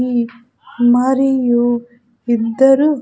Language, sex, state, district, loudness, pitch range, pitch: Telugu, female, Andhra Pradesh, Sri Satya Sai, -14 LUFS, 240-265 Hz, 240 Hz